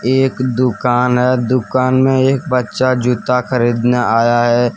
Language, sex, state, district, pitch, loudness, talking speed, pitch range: Hindi, male, Jharkhand, Deoghar, 125 Hz, -14 LUFS, 140 wpm, 120-130 Hz